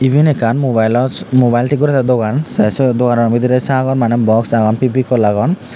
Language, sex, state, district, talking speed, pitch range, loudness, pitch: Chakma, male, Tripura, Unakoti, 185 wpm, 115-130 Hz, -13 LUFS, 125 Hz